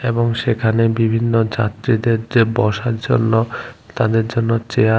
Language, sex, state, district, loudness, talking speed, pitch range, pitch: Bengali, male, Tripura, West Tripura, -17 LUFS, 130 wpm, 110-115 Hz, 115 Hz